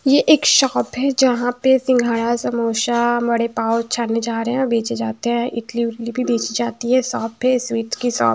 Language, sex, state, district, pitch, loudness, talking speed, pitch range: Hindi, female, Himachal Pradesh, Shimla, 235 Hz, -18 LUFS, 215 wpm, 230-250 Hz